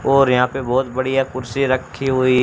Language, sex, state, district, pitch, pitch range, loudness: Hindi, male, Haryana, Charkhi Dadri, 130 Hz, 130-135 Hz, -18 LUFS